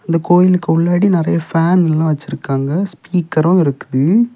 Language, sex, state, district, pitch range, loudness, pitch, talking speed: Tamil, male, Tamil Nadu, Kanyakumari, 155-180 Hz, -14 LUFS, 170 Hz, 125 wpm